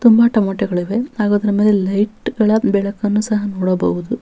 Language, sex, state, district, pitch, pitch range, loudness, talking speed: Kannada, female, Karnataka, Bellary, 210 Hz, 200-220 Hz, -16 LUFS, 140 wpm